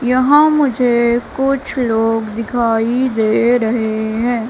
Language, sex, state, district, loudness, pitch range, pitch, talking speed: Hindi, female, Madhya Pradesh, Katni, -15 LUFS, 225-255 Hz, 235 Hz, 105 wpm